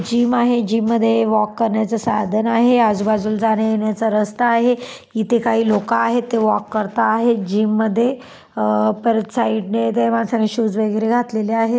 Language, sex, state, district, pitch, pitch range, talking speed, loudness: Marathi, female, Maharashtra, Dhule, 225 Hz, 215-235 Hz, 160 wpm, -18 LUFS